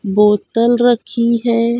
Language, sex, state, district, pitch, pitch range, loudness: Hindi, female, Bihar, Jamui, 235 Hz, 225-240 Hz, -14 LUFS